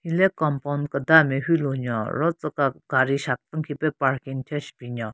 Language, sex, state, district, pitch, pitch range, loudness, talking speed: Rengma, female, Nagaland, Kohima, 145 Hz, 130-155 Hz, -23 LUFS, 175 wpm